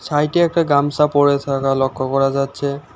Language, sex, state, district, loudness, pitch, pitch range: Bengali, male, West Bengal, Alipurduar, -17 LUFS, 140 Hz, 135-150 Hz